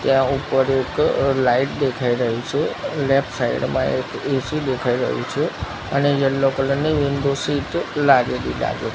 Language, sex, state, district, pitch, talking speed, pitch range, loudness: Gujarati, male, Gujarat, Gandhinagar, 135 Hz, 160 wpm, 130-140 Hz, -20 LUFS